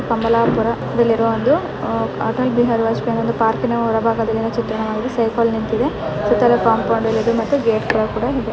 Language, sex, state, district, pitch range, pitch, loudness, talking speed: Kannada, female, Karnataka, Bellary, 225-235 Hz, 230 Hz, -18 LUFS, 105 wpm